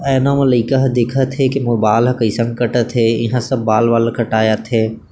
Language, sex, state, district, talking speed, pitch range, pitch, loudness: Chhattisgarhi, male, Chhattisgarh, Bilaspur, 200 wpm, 115-130 Hz, 120 Hz, -15 LUFS